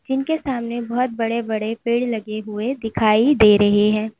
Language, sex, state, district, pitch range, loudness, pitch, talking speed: Hindi, female, Uttar Pradesh, Lalitpur, 215-245 Hz, -19 LUFS, 230 Hz, 170 wpm